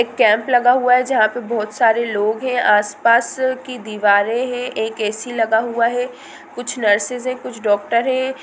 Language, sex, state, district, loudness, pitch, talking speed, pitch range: Hindi, female, Bihar, Sitamarhi, -17 LUFS, 235 Hz, 190 wpm, 215-250 Hz